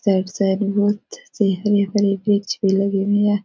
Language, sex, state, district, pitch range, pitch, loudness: Hindi, female, Bihar, Jahanabad, 195-205 Hz, 200 Hz, -19 LUFS